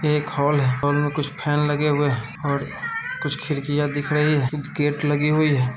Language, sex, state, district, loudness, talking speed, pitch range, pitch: Hindi, male, Bihar, Saran, -22 LUFS, 200 wpm, 145-150 Hz, 145 Hz